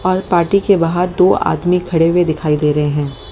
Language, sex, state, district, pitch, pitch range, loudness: Hindi, female, Haryana, Jhajjar, 175 Hz, 150-185 Hz, -14 LUFS